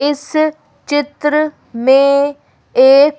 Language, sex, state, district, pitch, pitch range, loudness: Hindi, female, Madhya Pradesh, Bhopal, 290 Hz, 275-295 Hz, -13 LUFS